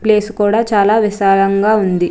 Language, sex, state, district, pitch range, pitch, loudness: Telugu, female, Andhra Pradesh, Chittoor, 195-215 Hz, 205 Hz, -13 LUFS